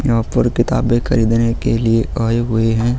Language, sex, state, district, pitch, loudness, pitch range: Hindi, male, Uttarakhand, Tehri Garhwal, 115 Hz, -16 LUFS, 115-120 Hz